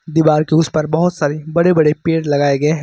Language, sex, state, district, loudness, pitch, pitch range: Hindi, male, Uttar Pradesh, Lucknow, -15 LUFS, 155 Hz, 150-165 Hz